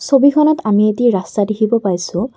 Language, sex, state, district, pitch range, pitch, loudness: Assamese, female, Assam, Kamrup Metropolitan, 205-265 Hz, 215 Hz, -14 LUFS